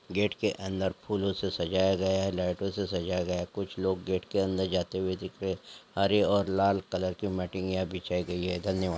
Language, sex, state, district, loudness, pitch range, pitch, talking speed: Angika, male, Bihar, Samastipur, -30 LUFS, 90-100 Hz, 95 Hz, 220 wpm